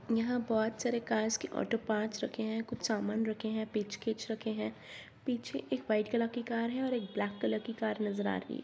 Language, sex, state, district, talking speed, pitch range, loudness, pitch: Hindi, female, Bihar, Lakhisarai, 230 wpm, 215-230 Hz, -35 LUFS, 220 Hz